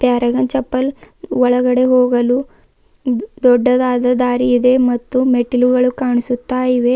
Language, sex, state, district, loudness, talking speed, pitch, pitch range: Kannada, female, Karnataka, Bidar, -15 LUFS, 95 wpm, 250 Hz, 245-255 Hz